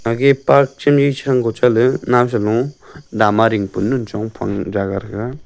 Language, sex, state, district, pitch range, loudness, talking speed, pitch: Wancho, male, Arunachal Pradesh, Longding, 105-130 Hz, -16 LUFS, 175 wpm, 115 Hz